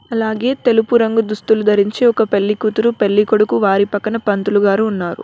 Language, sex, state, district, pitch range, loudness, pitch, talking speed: Telugu, female, Telangana, Mahabubabad, 205-225 Hz, -15 LUFS, 215 Hz, 160 wpm